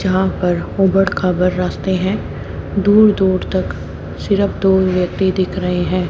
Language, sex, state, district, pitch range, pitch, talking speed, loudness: Hindi, female, Haryana, Jhajjar, 180-195 Hz, 185 Hz, 150 wpm, -16 LUFS